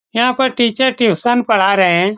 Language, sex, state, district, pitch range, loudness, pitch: Hindi, male, Bihar, Saran, 200-250 Hz, -14 LUFS, 235 Hz